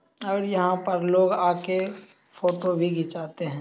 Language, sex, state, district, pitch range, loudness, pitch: Hindi, male, Bihar, Samastipur, 175-190 Hz, -25 LUFS, 180 Hz